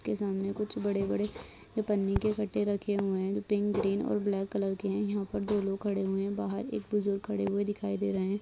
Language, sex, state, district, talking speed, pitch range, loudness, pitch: Hindi, female, Bihar, Purnia, 240 wpm, 195-205 Hz, -32 LUFS, 200 Hz